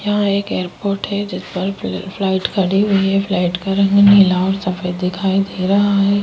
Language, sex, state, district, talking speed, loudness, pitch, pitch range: Hindi, female, Goa, North and South Goa, 195 wpm, -16 LUFS, 195 Hz, 185-200 Hz